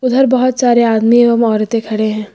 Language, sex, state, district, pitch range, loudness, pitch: Hindi, female, Uttar Pradesh, Lucknow, 220-250 Hz, -12 LUFS, 235 Hz